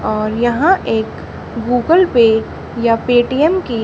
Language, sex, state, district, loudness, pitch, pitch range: Hindi, female, Haryana, Charkhi Dadri, -14 LUFS, 240 Hz, 230-295 Hz